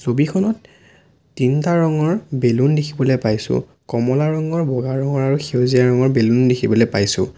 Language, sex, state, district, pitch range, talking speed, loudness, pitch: Assamese, male, Assam, Sonitpur, 120-150 Hz, 130 wpm, -17 LUFS, 130 Hz